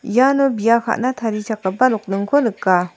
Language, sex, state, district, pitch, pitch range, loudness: Garo, female, Meghalaya, South Garo Hills, 225 Hz, 200-255 Hz, -18 LUFS